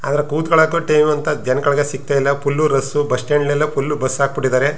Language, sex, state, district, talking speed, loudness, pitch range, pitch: Kannada, male, Karnataka, Chamarajanagar, 190 wpm, -17 LUFS, 140-150 Hz, 145 Hz